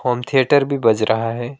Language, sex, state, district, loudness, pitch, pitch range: Hindi, male, West Bengal, Alipurduar, -17 LUFS, 125 Hz, 115-140 Hz